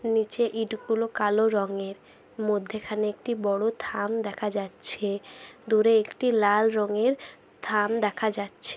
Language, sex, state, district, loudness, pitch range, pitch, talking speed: Bengali, female, West Bengal, Jhargram, -26 LUFS, 205-225 Hz, 215 Hz, 115 wpm